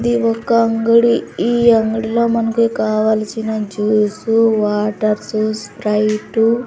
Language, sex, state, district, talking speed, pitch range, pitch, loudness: Telugu, female, Andhra Pradesh, Sri Satya Sai, 100 wpm, 215-230 Hz, 225 Hz, -16 LUFS